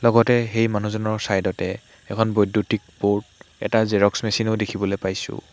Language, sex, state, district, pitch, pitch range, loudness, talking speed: Assamese, male, Assam, Hailakandi, 110 Hz, 100-115 Hz, -22 LUFS, 150 wpm